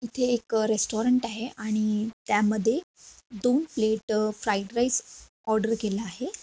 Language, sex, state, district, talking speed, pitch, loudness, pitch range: Marathi, female, Maharashtra, Aurangabad, 120 wpm, 220 Hz, -27 LUFS, 215-240 Hz